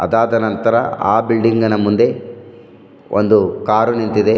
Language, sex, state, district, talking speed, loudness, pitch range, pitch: Kannada, male, Karnataka, Bidar, 125 wpm, -15 LUFS, 105-115 Hz, 110 Hz